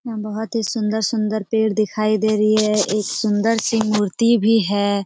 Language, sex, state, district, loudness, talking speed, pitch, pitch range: Hindi, female, Jharkhand, Jamtara, -19 LUFS, 180 wpm, 215 Hz, 210-225 Hz